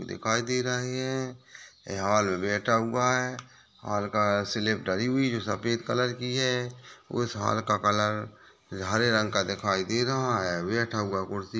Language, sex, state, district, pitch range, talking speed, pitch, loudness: Hindi, male, Chhattisgarh, Kabirdham, 105-125 Hz, 180 wpm, 110 Hz, -28 LUFS